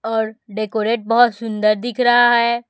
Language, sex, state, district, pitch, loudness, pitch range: Hindi, female, Chhattisgarh, Raipur, 230 Hz, -17 LUFS, 215-240 Hz